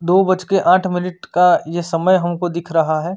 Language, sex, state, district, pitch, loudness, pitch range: Hindi, male, Chandigarh, Chandigarh, 175 Hz, -16 LUFS, 170-185 Hz